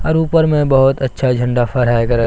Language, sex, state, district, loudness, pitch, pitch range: Hindi, male, Bihar, Katihar, -14 LUFS, 130 Hz, 120-145 Hz